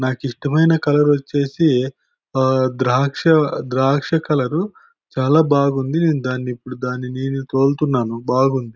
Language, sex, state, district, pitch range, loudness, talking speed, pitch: Telugu, male, Andhra Pradesh, Anantapur, 130-150 Hz, -18 LUFS, 105 wpm, 135 Hz